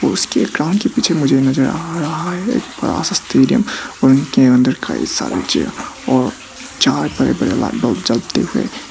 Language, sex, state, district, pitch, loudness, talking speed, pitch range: Hindi, male, Arunachal Pradesh, Papum Pare, 155 Hz, -16 LUFS, 175 wpm, 135-180 Hz